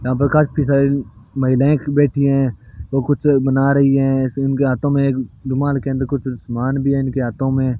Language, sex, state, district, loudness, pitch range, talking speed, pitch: Hindi, male, Rajasthan, Bikaner, -17 LUFS, 130-140 Hz, 190 wpm, 135 Hz